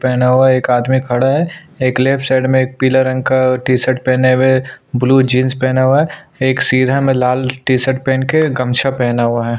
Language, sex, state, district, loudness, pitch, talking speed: Hindi, male, Maharashtra, Aurangabad, -14 LUFS, 130 Hz, 205 wpm